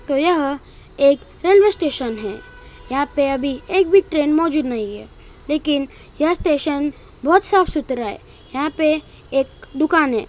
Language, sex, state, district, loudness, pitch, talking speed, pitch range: Hindi, male, Bihar, Sitamarhi, -19 LUFS, 295 Hz, 155 wpm, 275-325 Hz